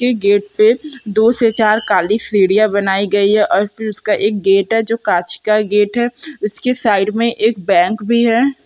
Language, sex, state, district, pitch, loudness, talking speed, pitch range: Hindi, female, Chhattisgarh, Sukma, 215 Hz, -14 LUFS, 200 wpm, 205-230 Hz